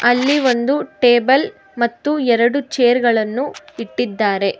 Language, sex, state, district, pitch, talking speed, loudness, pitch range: Kannada, female, Karnataka, Bangalore, 245 Hz, 105 wpm, -16 LUFS, 235-275 Hz